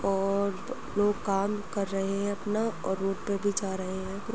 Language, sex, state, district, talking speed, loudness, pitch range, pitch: Hindi, female, Uttar Pradesh, Jyotiba Phule Nagar, 165 wpm, -30 LUFS, 195-205 Hz, 200 Hz